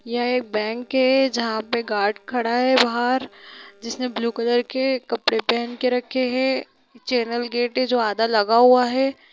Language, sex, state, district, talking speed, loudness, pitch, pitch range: Hindi, female, Bihar, Sitamarhi, 175 wpm, -21 LUFS, 240 Hz, 235-255 Hz